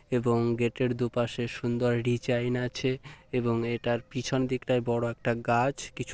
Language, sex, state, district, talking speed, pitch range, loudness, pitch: Bengali, male, West Bengal, Purulia, 145 wpm, 120-125 Hz, -29 LUFS, 120 Hz